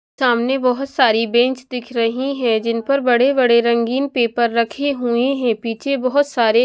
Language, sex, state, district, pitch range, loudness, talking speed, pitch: Hindi, female, Punjab, Kapurthala, 235-270 Hz, -17 LUFS, 180 wpm, 245 Hz